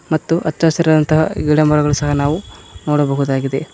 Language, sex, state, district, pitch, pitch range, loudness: Kannada, male, Karnataka, Koppal, 150 Hz, 140-155 Hz, -15 LUFS